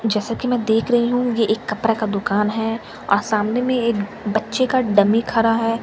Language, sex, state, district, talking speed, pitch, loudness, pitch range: Hindi, female, Bihar, Katihar, 225 wpm, 225 Hz, -19 LUFS, 215-235 Hz